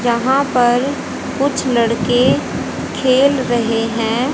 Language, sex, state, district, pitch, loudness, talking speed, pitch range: Hindi, female, Haryana, Rohtak, 250 Hz, -16 LUFS, 95 wpm, 235-270 Hz